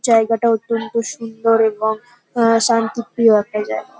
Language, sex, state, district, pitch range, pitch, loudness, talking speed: Bengali, female, West Bengal, North 24 Parganas, 220-230 Hz, 225 Hz, -17 LUFS, 120 wpm